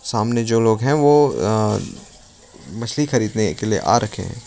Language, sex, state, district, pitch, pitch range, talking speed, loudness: Hindi, male, Uttar Pradesh, Lucknow, 115 Hz, 110-120 Hz, 160 wpm, -18 LUFS